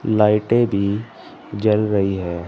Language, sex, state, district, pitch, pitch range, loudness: Hindi, male, Uttar Pradesh, Saharanpur, 105 Hz, 100-110 Hz, -19 LUFS